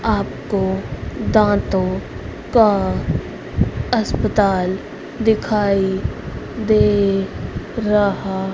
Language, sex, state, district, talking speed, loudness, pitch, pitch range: Hindi, female, Haryana, Rohtak, 50 wpm, -19 LUFS, 195 Hz, 190-210 Hz